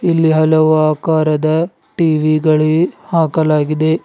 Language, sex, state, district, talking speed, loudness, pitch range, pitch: Kannada, male, Karnataka, Bidar, 90 wpm, -14 LUFS, 155-165 Hz, 155 Hz